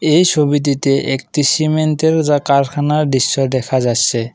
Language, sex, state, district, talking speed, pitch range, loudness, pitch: Bengali, male, Assam, Kamrup Metropolitan, 125 wpm, 135-155 Hz, -14 LUFS, 145 Hz